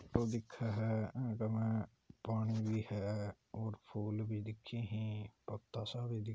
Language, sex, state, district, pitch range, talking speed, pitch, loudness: Hindi, male, Rajasthan, Churu, 105-115 Hz, 160 wpm, 110 Hz, -41 LUFS